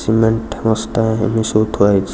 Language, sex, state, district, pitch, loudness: Odia, male, Odisha, Nuapada, 110 Hz, -16 LUFS